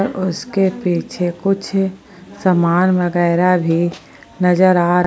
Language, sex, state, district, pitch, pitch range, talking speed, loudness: Hindi, female, Jharkhand, Palamu, 180 Hz, 175-190 Hz, 120 wpm, -16 LUFS